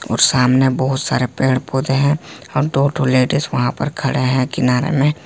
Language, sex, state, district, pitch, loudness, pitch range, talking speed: Hindi, male, Jharkhand, Ranchi, 130 Hz, -17 LUFS, 130-140 Hz, 195 wpm